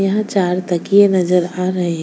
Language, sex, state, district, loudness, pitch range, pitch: Hindi, female, Chhattisgarh, Bastar, -16 LUFS, 180-195 Hz, 185 Hz